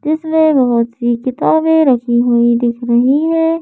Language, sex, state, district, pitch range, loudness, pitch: Hindi, female, Madhya Pradesh, Bhopal, 240-315 Hz, -13 LUFS, 255 Hz